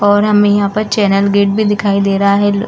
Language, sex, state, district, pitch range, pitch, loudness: Hindi, female, Uttar Pradesh, Muzaffarnagar, 200-205 Hz, 205 Hz, -12 LUFS